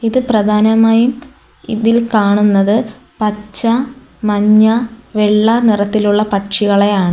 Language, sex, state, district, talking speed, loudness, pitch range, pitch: Malayalam, female, Kerala, Kollam, 75 wpm, -13 LUFS, 210-230 Hz, 215 Hz